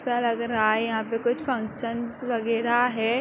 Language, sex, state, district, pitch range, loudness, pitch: Hindi, female, Jharkhand, Sahebganj, 225-240 Hz, -25 LUFS, 235 Hz